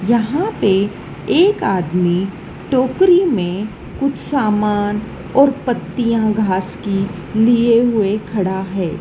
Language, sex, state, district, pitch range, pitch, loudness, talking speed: Hindi, female, Madhya Pradesh, Dhar, 190-245 Hz, 215 Hz, -16 LUFS, 105 wpm